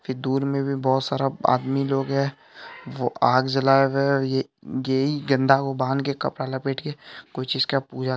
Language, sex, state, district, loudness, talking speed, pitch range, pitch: Hindi, male, Bihar, Supaul, -23 LUFS, 185 wpm, 130-140 Hz, 135 Hz